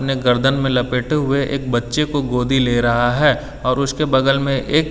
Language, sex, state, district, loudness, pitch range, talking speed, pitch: Hindi, male, Delhi, New Delhi, -17 LUFS, 125-140 Hz, 210 wpm, 135 Hz